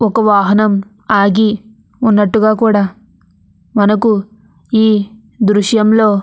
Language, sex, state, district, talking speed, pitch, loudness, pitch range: Telugu, female, Andhra Pradesh, Anantapur, 85 wpm, 215 Hz, -12 LUFS, 205-220 Hz